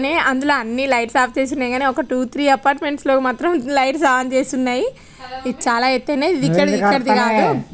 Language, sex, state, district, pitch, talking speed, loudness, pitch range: Telugu, female, Telangana, Nalgonda, 270 Hz, 170 wpm, -17 LUFS, 255-290 Hz